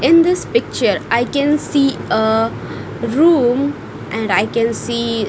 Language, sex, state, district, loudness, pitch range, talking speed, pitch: English, female, Punjab, Kapurthala, -16 LUFS, 230-290 Hz, 135 wpm, 240 Hz